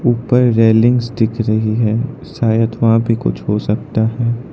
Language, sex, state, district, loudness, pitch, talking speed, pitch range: Hindi, male, Arunachal Pradesh, Lower Dibang Valley, -15 LUFS, 115 Hz, 160 wpm, 110-120 Hz